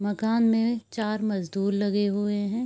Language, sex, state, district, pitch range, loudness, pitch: Hindi, female, Bihar, Araria, 205-225 Hz, -26 LUFS, 205 Hz